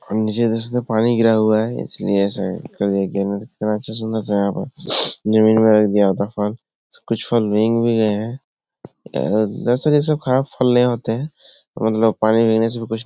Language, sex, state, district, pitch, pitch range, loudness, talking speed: Hindi, male, Bihar, Supaul, 110 Hz, 105-115 Hz, -18 LUFS, 215 wpm